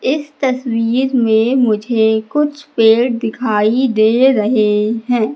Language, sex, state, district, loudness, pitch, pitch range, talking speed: Hindi, female, Madhya Pradesh, Katni, -14 LUFS, 235 Hz, 220-260 Hz, 110 wpm